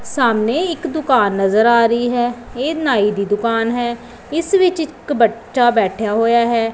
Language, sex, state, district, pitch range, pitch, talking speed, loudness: Punjabi, female, Punjab, Pathankot, 225-265 Hz, 235 Hz, 170 wpm, -16 LUFS